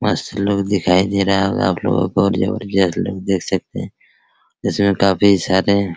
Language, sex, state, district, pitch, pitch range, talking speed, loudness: Hindi, male, Bihar, Araria, 100 Hz, 95-100 Hz, 180 wpm, -17 LUFS